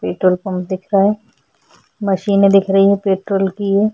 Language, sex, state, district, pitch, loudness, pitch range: Hindi, female, Chhattisgarh, Sukma, 195 Hz, -15 LUFS, 190-200 Hz